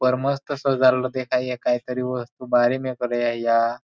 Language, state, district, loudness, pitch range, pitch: Bhili, Maharashtra, Dhule, -22 LUFS, 120-130 Hz, 125 Hz